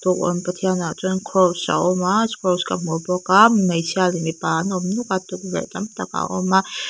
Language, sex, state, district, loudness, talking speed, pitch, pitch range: Mizo, female, Mizoram, Aizawl, -20 LUFS, 225 wpm, 185 Hz, 180-190 Hz